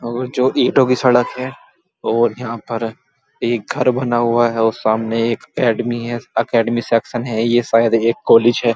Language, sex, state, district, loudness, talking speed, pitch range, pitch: Hindi, male, Uttar Pradesh, Muzaffarnagar, -17 LUFS, 190 wpm, 115-125 Hz, 120 Hz